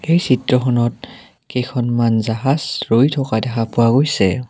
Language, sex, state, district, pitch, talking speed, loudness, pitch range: Assamese, male, Assam, Kamrup Metropolitan, 125 Hz, 120 wpm, -17 LUFS, 115-135 Hz